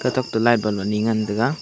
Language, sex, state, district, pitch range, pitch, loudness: Wancho, male, Arunachal Pradesh, Longding, 105-120 Hz, 115 Hz, -21 LUFS